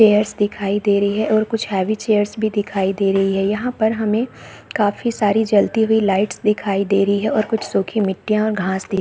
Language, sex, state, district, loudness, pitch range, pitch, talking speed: Hindi, female, Chhattisgarh, Bastar, -18 LUFS, 200-215 Hz, 210 Hz, 220 wpm